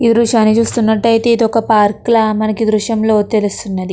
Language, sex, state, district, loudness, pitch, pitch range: Telugu, female, Andhra Pradesh, Krishna, -13 LUFS, 220 Hz, 215-230 Hz